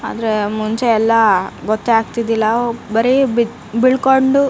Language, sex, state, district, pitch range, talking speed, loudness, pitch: Kannada, female, Karnataka, Raichur, 220-250 Hz, 105 wpm, -15 LUFS, 230 Hz